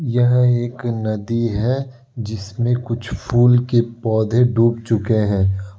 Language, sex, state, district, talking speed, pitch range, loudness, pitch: Hindi, male, Bihar, Kishanganj, 125 wpm, 110-120 Hz, -18 LUFS, 115 Hz